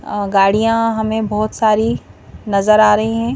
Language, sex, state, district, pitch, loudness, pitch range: Hindi, female, Madhya Pradesh, Bhopal, 215 Hz, -15 LUFS, 210-225 Hz